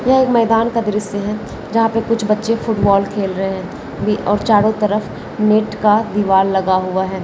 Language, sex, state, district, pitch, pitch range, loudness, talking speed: Hindi, female, Rajasthan, Nagaur, 210 Hz, 195-225 Hz, -16 LUFS, 190 wpm